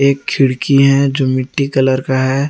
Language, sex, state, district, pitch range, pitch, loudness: Hindi, male, Jharkhand, Garhwa, 130-140 Hz, 135 Hz, -14 LUFS